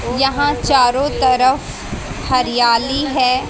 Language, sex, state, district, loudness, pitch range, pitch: Hindi, female, Haryana, Jhajjar, -15 LUFS, 245-270 Hz, 255 Hz